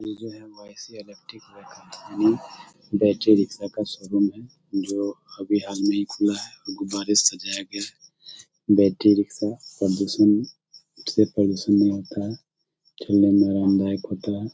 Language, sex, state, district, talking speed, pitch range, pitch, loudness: Hindi, male, Bihar, Samastipur, 145 wpm, 100-110 Hz, 105 Hz, -23 LUFS